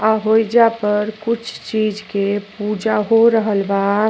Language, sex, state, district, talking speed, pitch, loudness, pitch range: Bhojpuri, female, Uttar Pradesh, Ghazipur, 145 wpm, 215 Hz, -17 LUFS, 205-225 Hz